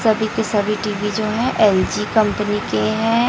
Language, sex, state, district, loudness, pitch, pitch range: Hindi, female, Chhattisgarh, Raipur, -18 LUFS, 215 Hz, 210-220 Hz